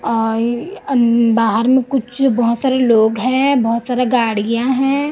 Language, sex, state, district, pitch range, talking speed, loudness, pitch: Hindi, female, Chhattisgarh, Raipur, 230-260 Hz, 150 wpm, -15 LUFS, 240 Hz